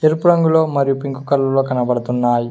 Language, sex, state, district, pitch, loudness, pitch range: Telugu, male, Telangana, Mahabubabad, 135 Hz, -16 LUFS, 125-155 Hz